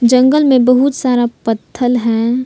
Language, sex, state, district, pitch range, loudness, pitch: Hindi, female, Jharkhand, Palamu, 240-260 Hz, -13 LUFS, 250 Hz